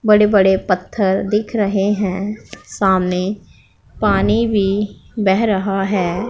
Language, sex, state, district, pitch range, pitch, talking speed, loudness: Hindi, female, Punjab, Pathankot, 190-210 Hz, 200 Hz, 115 wpm, -17 LUFS